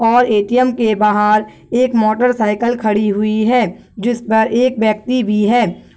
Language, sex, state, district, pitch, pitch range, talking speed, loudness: Hindi, male, Bihar, Kishanganj, 220 Hz, 215-245 Hz, 150 wpm, -15 LUFS